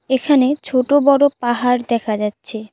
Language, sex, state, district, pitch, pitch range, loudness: Bengali, female, West Bengal, Cooch Behar, 250 Hz, 230-275 Hz, -16 LUFS